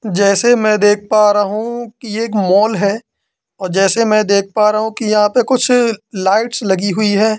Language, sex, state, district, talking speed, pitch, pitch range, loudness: Hindi, male, Madhya Pradesh, Katni, 205 wpm, 215 Hz, 200-225 Hz, -14 LUFS